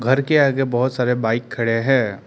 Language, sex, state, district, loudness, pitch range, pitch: Hindi, male, Arunachal Pradesh, Lower Dibang Valley, -19 LUFS, 115-135 Hz, 125 Hz